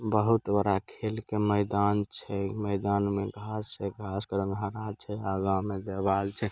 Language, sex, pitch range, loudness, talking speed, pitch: Angika, male, 100-105 Hz, -30 LUFS, 175 wpm, 100 Hz